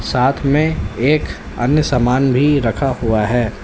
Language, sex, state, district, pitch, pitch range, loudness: Hindi, male, Uttar Pradesh, Lalitpur, 125 Hz, 115-145 Hz, -16 LUFS